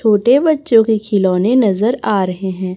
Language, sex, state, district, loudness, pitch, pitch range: Hindi, female, Chhattisgarh, Raipur, -14 LUFS, 215 Hz, 190-240 Hz